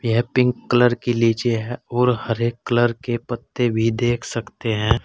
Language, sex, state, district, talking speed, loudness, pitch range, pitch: Hindi, male, Uttar Pradesh, Saharanpur, 180 wpm, -21 LUFS, 115-120 Hz, 120 Hz